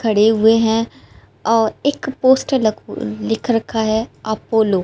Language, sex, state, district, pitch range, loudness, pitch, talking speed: Hindi, female, Haryana, Rohtak, 220-230 Hz, -17 LUFS, 225 Hz, 150 wpm